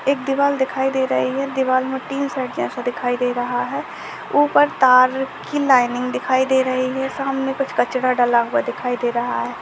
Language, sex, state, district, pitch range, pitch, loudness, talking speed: Hindi, female, Chhattisgarh, Jashpur, 245-275 Hz, 260 Hz, -19 LUFS, 195 wpm